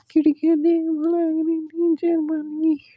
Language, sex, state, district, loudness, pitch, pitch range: Hindi, male, Rajasthan, Nagaur, -21 LUFS, 320 Hz, 315-330 Hz